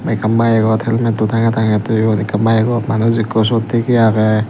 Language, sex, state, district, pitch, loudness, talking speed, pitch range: Chakma, male, Tripura, Dhalai, 110 Hz, -14 LUFS, 175 wpm, 110-115 Hz